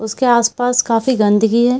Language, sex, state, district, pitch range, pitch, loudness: Hindi, female, Bihar, Kishanganj, 220-245 Hz, 235 Hz, -14 LUFS